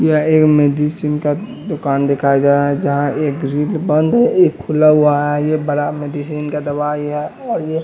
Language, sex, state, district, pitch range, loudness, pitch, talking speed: Hindi, male, Bihar, West Champaran, 145-155 Hz, -15 LUFS, 150 Hz, 160 wpm